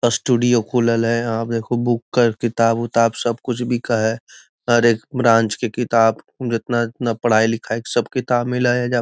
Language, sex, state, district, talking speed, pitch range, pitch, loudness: Magahi, male, Bihar, Gaya, 180 wpm, 115-120 Hz, 120 Hz, -19 LUFS